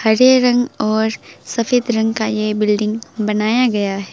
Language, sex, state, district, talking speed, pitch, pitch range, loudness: Hindi, female, West Bengal, Alipurduar, 160 wpm, 220 Hz, 210-235 Hz, -16 LUFS